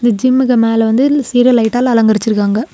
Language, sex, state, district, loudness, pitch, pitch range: Tamil, female, Tamil Nadu, Kanyakumari, -12 LUFS, 235 Hz, 225-250 Hz